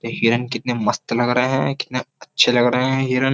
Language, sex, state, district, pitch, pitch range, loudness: Hindi, male, Uttar Pradesh, Jyotiba Phule Nagar, 125 Hz, 120-130 Hz, -19 LUFS